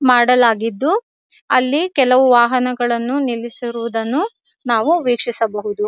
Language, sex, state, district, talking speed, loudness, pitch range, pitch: Kannada, female, Karnataka, Dharwad, 70 wpm, -16 LUFS, 235-270 Hz, 245 Hz